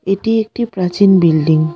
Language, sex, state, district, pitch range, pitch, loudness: Bengali, female, West Bengal, Alipurduar, 165-215 Hz, 190 Hz, -13 LUFS